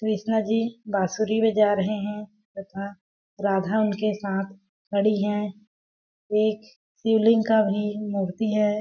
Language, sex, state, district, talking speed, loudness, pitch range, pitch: Hindi, female, Chhattisgarh, Balrampur, 130 wpm, -24 LUFS, 200-215 Hz, 210 Hz